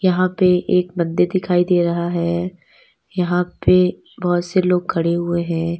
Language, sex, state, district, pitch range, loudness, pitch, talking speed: Hindi, female, Uttar Pradesh, Lalitpur, 170-180 Hz, -18 LUFS, 180 Hz, 165 wpm